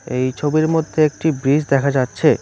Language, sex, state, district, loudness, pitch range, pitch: Bengali, male, West Bengal, Cooch Behar, -17 LUFS, 135-155 Hz, 145 Hz